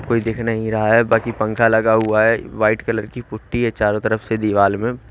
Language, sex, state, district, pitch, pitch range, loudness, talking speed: Hindi, male, Haryana, Rohtak, 110 Hz, 110-115 Hz, -18 LUFS, 235 wpm